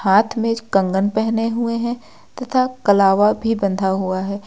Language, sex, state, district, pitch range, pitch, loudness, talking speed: Hindi, female, Uttar Pradesh, Lucknow, 195-230 Hz, 215 Hz, -18 LUFS, 160 wpm